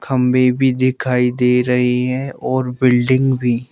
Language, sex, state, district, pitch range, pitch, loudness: Hindi, male, Madhya Pradesh, Bhopal, 125-130 Hz, 125 Hz, -16 LUFS